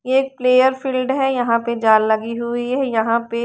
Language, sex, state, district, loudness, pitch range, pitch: Hindi, female, Haryana, Rohtak, -18 LUFS, 230-260 Hz, 240 Hz